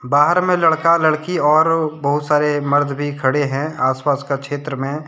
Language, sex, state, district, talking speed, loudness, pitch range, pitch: Hindi, male, Jharkhand, Deoghar, 175 wpm, -17 LUFS, 140-155 Hz, 145 Hz